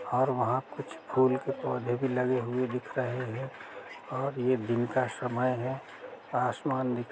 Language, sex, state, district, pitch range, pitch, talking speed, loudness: Hindi, male, Uttar Pradesh, Jalaun, 125-130 Hz, 130 Hz, 185 wpm, -31 LUFS